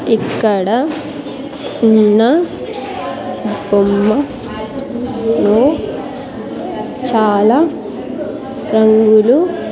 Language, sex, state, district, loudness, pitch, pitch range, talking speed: Telugu, female, Andhra Pradesh, Sri Satya Sai, -14 LUFS, 245 Hz, 220-285 Hz, 35 wpm